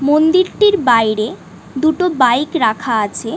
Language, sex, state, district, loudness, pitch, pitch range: Bengali, female, West Bengal, North 24 Parganas, -14 LUFS, 285 Hz, 230-345 Hz